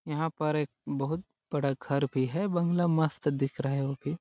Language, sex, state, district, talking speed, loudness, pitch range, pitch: Hindi, male, Chhattisgarh, Sarguja, 215 wpm, -30 LUFS, 140-160 Hz, 150 Hz